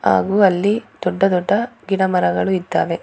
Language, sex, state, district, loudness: Kannada, female, Karnataka, Bangalore, -18 LUFS